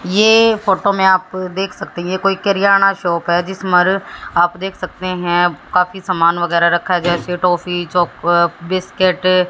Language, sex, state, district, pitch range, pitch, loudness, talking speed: Hindi, female, Haryana, Jhajjar, 175-190 Hz, 185 Hz, -15 LUFS, 175 wpm